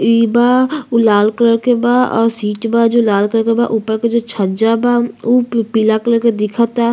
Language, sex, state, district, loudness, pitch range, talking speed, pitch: Bhojpuri, female, Uttar Pradesh, Ghazipur, -13 LUFS, 220-235 Hz, 225 wpm, 230 Hz